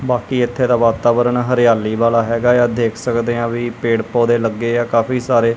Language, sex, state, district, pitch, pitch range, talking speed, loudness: Punjabi, male, Punjab, Kapurthala, 120 Hz, 115-120 Hz, 195 wpm, -16 LUFS